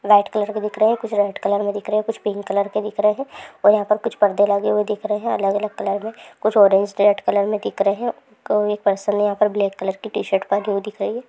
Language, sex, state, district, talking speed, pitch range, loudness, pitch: Hindi, male, West Bengal, Jalpaiguri, 285 wpm, 200-215 Hz, -20 LUFS, 205 Hz